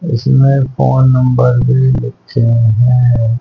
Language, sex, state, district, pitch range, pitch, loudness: Hindi, male, Haryana, Charkhi Dadri, 120-130 Hz, 125 Hz, -11 LUFS